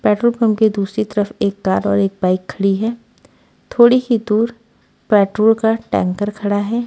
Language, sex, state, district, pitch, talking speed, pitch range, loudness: Hindi, female, Haryana, Rohtak, 215 Hz, 175 wpm, 200-230 Hz, -16 LUFS